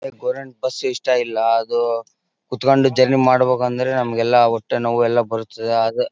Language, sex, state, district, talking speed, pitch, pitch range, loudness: Kannada, male, Karnataka, Bellary, 135 wpm, 125 Hz, 115-130 Hz, -18 LUFS